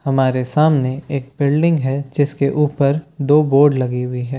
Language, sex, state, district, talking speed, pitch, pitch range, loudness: Hindi, male, Bihar, Katihar, 165 wpm, 140 Hz, 135-150 Hz, -17 LUFS